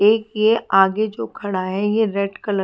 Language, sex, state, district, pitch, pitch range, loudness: Hindi, female, Haryana, Charkhi Dadri, 205 Hz, 195-215 Hz, -19 LUFS